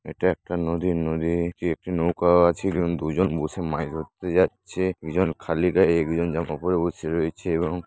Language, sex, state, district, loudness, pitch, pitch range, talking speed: Bengali, male, West Bengal, Dakshin Dinajpur, -24 LUFS, 85 Hz, 80-90 Hz, 160 wpm